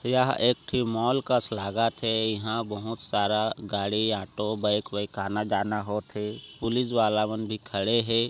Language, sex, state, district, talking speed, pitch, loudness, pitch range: Chhattisgarhi, male, Chhattisgarh, Raigarh, 175 wpm, 110 Hz, -27 LUFS, 105-115 Hz